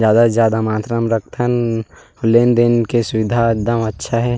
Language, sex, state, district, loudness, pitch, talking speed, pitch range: Chhattisgarhi, male, Chhattisgarh, Rajnandgaon, -16 LUFS, 115 Hz, 205 wpm, 110-120 Hz